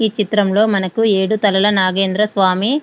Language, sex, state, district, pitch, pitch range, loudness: Telugu, female, Andhra Pradesh, Srikakulam, 205 Hz, 195-215 Hz, -15 LUFS